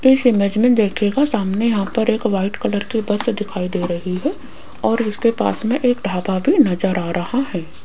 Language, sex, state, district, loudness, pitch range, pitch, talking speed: Hindi, female, Rajasthan, Jaipur, -18 LUFS, 190-235 Hz, 210 Hz, 205 wpm